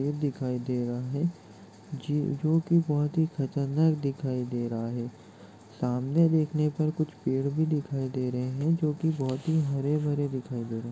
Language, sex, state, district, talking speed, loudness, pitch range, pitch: Hindi, male, Chhattisgarh, Rajnandgaon, 190 wpm, -29 LUFS, 125-155 Hz, 140 Hz